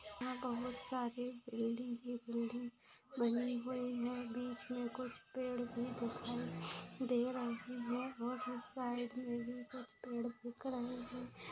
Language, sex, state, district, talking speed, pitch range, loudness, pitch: Hindi, female, Bihar, Saran, 145 wpm, 240-250 Hz, -43 LUFS, 245 Hz